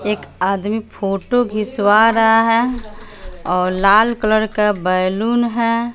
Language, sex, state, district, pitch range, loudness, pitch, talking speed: Hindi, female, Bihar, West Champaran, 200-230 Hz, -16 LUFS, 215 Hz, 120 wpm